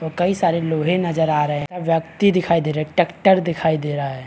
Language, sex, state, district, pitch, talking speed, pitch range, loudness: Hindi, male, Chhattisgarh, Bilaspur, 165 Hz, 240 wpm, 155-180 Hz, -19 LUFS